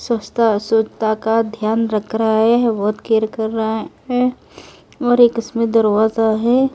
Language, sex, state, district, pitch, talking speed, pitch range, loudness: Hindi, female, Delhi, New Delhi, 225 Hz, 150 wpm, 220-235 Hz, -17 LUFS